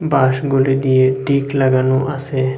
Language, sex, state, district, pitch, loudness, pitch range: Bengali, male, Assam, Hailakandi, 135 Hz, -16 LUFS, 130-140 Hz